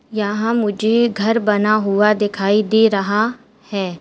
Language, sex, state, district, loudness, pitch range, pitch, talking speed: Hindi, female, Uttar Pradesh, Lalitpur, -17 LUFS, 205-225 Hz, 215 Hz, 135 wpm